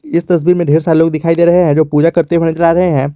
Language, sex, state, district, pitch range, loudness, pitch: Hindi, male, Jharkhand, Garhwa, 160-170 Hz, -11 LUFS, 165 Hz